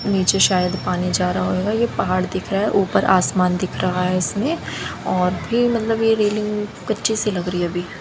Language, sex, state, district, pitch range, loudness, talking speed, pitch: Hindi, female, Haryana, Jhajjar, 180-210 Hz, -20 LUFS, 210 wpm, 190 Hz